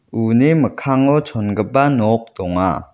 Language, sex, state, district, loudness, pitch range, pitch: Garo, male, Meghalaya, West Garo Hills, -16 LUFS, 105-140 Hz, 115 Hz